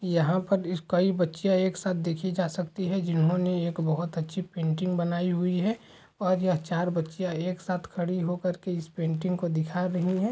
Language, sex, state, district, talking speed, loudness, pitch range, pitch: Hindi, male, Uttar Pradesh, Budaun, 205 wpm, -28 LUFS, 170-185 Hz, 180 Hz